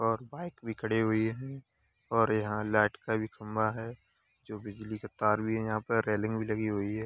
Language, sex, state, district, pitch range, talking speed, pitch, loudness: Hindi, male, Uttar Pradesh, Hamirpur, 105-115 Hz, 220 wpm, 110 Hz, -32 LUFS